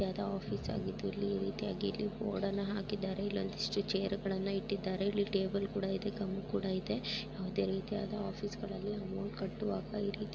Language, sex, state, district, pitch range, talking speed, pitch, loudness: Kannada, female, Karnataka, Bijapur, 195-205 Hz, 140 wpm, 200 Hz, -37 LUFS